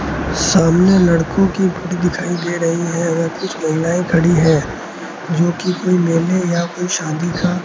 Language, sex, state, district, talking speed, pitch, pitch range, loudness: Hindi, male, Rajasthan, Bikaner, 170 wpm, 175 Hz, 165-180 Hz, -16 LUFS